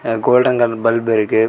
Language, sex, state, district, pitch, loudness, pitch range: Tamil, male, Tamil Nadu, Kanyakumari, 115 Hz, -15 LUFS, 115-120 Hz